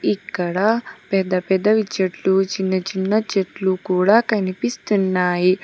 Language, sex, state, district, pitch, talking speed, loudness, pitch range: Telugu, female, Telangana, Hyderabad, 190 Hz, 95 wpm, -19 LUFS, 185-210 Hz